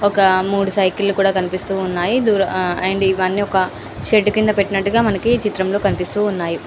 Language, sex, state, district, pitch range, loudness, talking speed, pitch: Telugu, female, Andhra Pradesh, Anantapur, 185-205 Hz, -17 LUFS, 145 wpm, 195 Hz